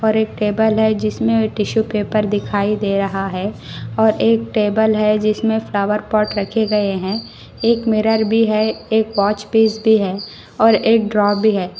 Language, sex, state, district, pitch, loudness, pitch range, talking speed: Hindi, female, Karnataka, Koppal, 215 Hz, -17 LUFS, 205-220 Hz, 180 wpm